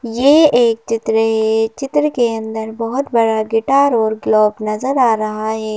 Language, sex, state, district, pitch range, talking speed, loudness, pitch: Hindi, female, Madhya Pradesh, Bhopal, 220-245 Hz, 165 wpm, -15 LUFS, 225 Hz